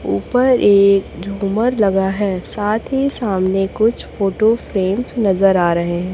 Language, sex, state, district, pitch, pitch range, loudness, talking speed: Hindi, female, Chhattisgarh, Raipur, 200 Hz, 190-225 Hz, -16 LUFS, 145 wpm